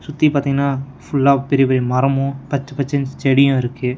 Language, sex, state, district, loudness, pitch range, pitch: Tamil, male, Tamil Nadu, Nilgiris, -17 LUFS, 135-140 Hz, 140 Hz